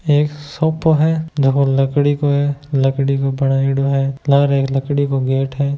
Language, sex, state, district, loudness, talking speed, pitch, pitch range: Hindi, male, Rajasthan, Nagaur, -16 LUFS, 145 wpm, 140 Hz, 135-145 Hz